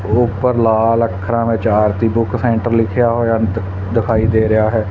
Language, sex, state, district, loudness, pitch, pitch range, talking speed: Punjabi, male, Punjab, Fazilka, -15 LUFS, 115 Hz, 110-115 Hz, 160 wpm